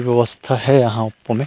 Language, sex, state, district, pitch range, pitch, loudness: Chhattisgarhi, male, Chhattisgarh, Rajnandgaon, 110-130 Hz, 120 Hz, -17 LUFS